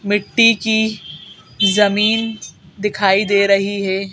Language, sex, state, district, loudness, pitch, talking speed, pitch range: Hindi, female, Madhya Pradesh, Bhopal, -15 LUFS, 205 Hz, 100 wpm, 195-215 Hz